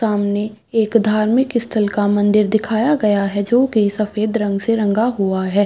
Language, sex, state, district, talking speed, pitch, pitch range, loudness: Hindi, female, Chhattisgarh, Bastar, 180 wpm, 215 Hz, 205-225 Hz, -17 LUFS